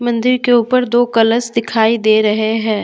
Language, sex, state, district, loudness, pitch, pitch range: Hindi, female, Jharkhand, Deoghar, -14 LUFS, 230 Hz, 220-240 Hz